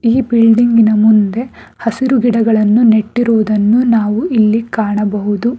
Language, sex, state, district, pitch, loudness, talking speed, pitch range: Kannada, female, Karnataka, Bangalore, 225 Hz, -12 LUFS, 95 wpm, 215-235 Hz